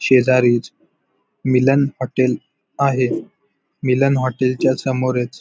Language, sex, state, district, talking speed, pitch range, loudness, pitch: Marathi, male, Maharashtra, Pune, 90 wpm, 125-135 Hz, -18 LUFS, 130 Hz